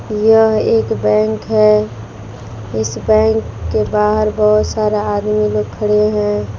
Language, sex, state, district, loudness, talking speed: Hindi, female, Jharkhand, Palamu, -14 LUFS, 130 wpm